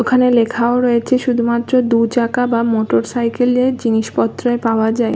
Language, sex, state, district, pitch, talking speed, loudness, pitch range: Bengali, female, West Bengal, Kolkata, 235 Hz, 140 wpm, -15 LUFS, 230-245 Hz